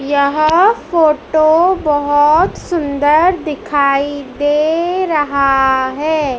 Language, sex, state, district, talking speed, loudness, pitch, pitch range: Hindi, male, Madhya Pradesh, Dhar, 75 wpm, -13 LUFS, 300 Hz, 285-325 Hz